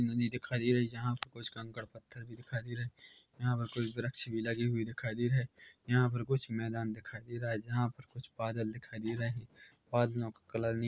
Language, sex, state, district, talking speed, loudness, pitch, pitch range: Hindi, male, Chhattisgarh, Korba, 250 wpm, -36 LUFS, 120 Hz, 115-125 Hz